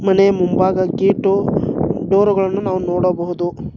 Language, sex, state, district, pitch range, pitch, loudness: Kannada, male, Karnataka, Bangalore, 180-195 Hz, 190 Hz, -16 LUFS